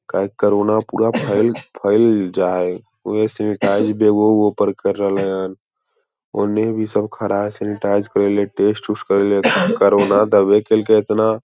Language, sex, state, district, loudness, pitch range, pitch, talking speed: Hindi, male, Bihar, Lakhisarai, -17 LUFS, 100-110 Hz, 105 Hz, 155 wpm